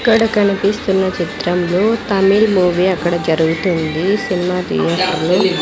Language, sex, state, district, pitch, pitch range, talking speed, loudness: Telugu, female, Andhra Pradesh, Sri Satya Sai, 185 Hz, 175-200 Hz, 115 wpm, -15 LUFS